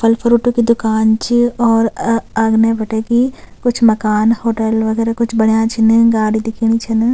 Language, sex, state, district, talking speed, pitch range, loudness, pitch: Garhwali, female, Uttarakhand, Tehri Garhwal, 170 wpm, 220-235 Hz, -14 LUFS, 225 Hz